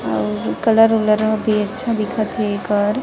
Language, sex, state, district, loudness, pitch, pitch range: Chhattisgarhi, female, Chhattisgarh, Sarguja, -18 LUFS, 215 Hz, 205-225 Hz